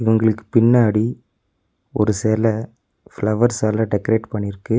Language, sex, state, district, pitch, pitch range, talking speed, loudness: Tamil, male, Tamil Nadu, Nilgiris, 110 Hz, 105-115 Hz, 90 wpm, -19 LUFS